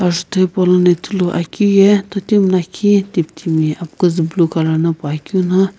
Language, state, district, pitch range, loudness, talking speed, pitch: Sumi, Nagaland, Kohima, 165-195 Hz, -15 LUFS, 125 wpm, 180 Hz